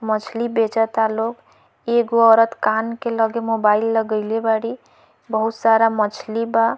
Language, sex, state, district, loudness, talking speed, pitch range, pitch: Bhojpuri, female, Bihar, Muzaffarpur, -19 LUFS, 135 wpm, 220-230 Hz, 225 Hz